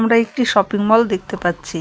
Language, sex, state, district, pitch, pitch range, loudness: Bengali, female, West Bengal, Cooch Behar, 205 Hz, 185-230 Hz, -17 LUFS